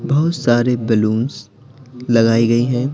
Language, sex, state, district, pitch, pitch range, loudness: Hindi, male, Bihar, Patna, 120 Hz, 115-130 Hz, -16 LUFS